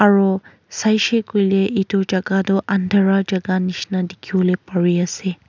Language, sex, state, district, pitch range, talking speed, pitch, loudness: Nagamese, female, Nagaland, Kohima, 185-200 Hz, 140 wpm, 195 Hz, -18 LUFS